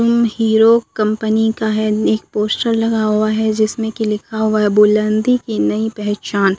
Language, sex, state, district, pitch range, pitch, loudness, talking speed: Hindi, female, Bihar, Katihar, 210-225 Hz, 215 Hz, -16 LUFS, 175 wpm